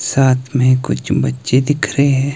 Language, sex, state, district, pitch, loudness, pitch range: Hindi, male, Himachal Pradesh, Shimla, 130 Hz, -15 LUFS, 130-140 Hz